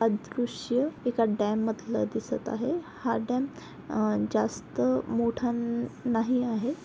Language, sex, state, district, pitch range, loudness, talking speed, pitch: Marathi, female, Maharashtra, Aurangabad, 210-245 Hz, -29 LUFS, 125 wpm, 230 Hz